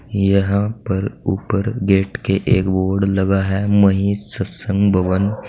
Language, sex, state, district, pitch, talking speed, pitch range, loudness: Hindi, male, Uttar Pradesh, Saharanpur, 100 Hz, 130 wpm, 95-100 Hz, -18 LUFS